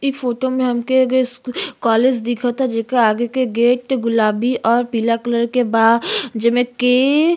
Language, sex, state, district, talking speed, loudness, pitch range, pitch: Bhojpuri, female, Uttar Pradesh, Gorakhpur, 170 wpm, -17 LUFS, 230-260 Hz, 245 Hz